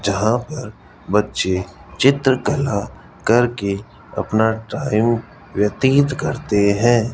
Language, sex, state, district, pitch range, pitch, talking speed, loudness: Hindi, male, Rajasthan, Jaipur, 100-125 Hz, 110 Hz, 85 wpm, -19 LUFS